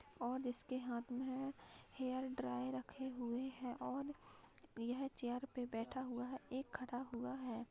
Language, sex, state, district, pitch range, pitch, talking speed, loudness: Hindi, female, Uttar Pradesh, Hamirpur, 240-265 Hz, 255 Hz, 155 wpm, -46 LUFS